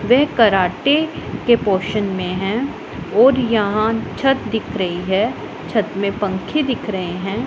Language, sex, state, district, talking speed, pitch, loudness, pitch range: Hindi, female, Punjab, Pathankot, 145 wpm, 215 Hz, -18 LUFS, 195-245 Hz